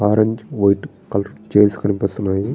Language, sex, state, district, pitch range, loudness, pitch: Telugu, male, Andhra Pradesh, Srikakulam, 100-105 Hz, -18 LUFS, 100 Hz